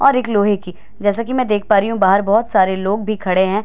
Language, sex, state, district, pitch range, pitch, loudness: Hindi, female, Bihar, Katihar, 190-220 Hz, 205 Hz, -16 LUFS